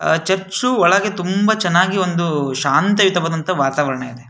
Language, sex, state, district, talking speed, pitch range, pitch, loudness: Kannada, male, Karnataka, Shimoga, 110 wpm, 150-195 Hz, 175 Hz, -17 LUFS